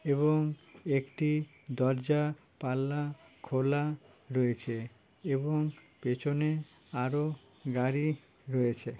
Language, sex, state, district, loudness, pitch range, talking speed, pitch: Bengali, male, West Bengal, Jhargram, -33 LUFS, 130-150 Hz, 80 wpm, 140 Hz